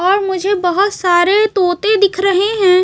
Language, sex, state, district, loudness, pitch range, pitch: Hindi, female, Chhattisgarh, Raipur, -13 LUFS, 365-405 Hz, 385 Hz